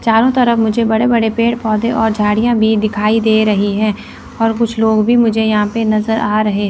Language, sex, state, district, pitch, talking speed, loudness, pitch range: Hindi, female, Chandigarh, Chandigarh, 220 Hz, 215 wpm, -14 LUFS, 215-230 Hz